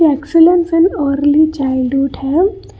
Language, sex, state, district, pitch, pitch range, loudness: Hindi, female, Karnataka, Bangalore, 305 Hz, 275-335 Hz, -13 LUFS